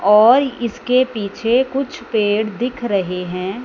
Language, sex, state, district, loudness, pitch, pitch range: Hindi, male, Punjab, Fazilka, -18 LUFS, 230 Hz, 205-250 Hz